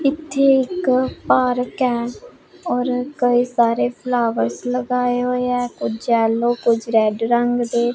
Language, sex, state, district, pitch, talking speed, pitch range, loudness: Punjabi, female, Punjab, Pathankot, 245 Hz, 130 wpm, 235-250 Hz, -19 LUFS